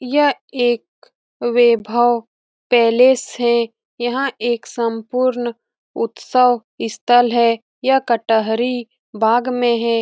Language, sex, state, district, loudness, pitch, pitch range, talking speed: Hindi, female, Bihar, Saran, -17 LUFS, 240 Hz, 230-250 Hz, 95 wpm